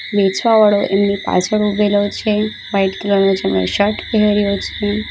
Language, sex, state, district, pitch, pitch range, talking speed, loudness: Gujarati, female, Gujarat, Valsad, 205 Hz, 200-210 Hz, 155 wpm, -16 LUFS